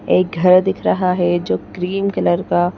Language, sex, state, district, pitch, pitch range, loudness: Hindi, female, Madhya Pradesh, Bhopal, 180 Hz, 175-185 Hz, -17 LUFS